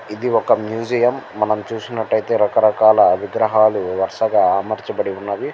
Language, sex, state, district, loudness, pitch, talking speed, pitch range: Telugu, male, Andhra Pradesh, Guntur, -17 LUFS, 110 Hz, 250 wpm, 105-115 Hz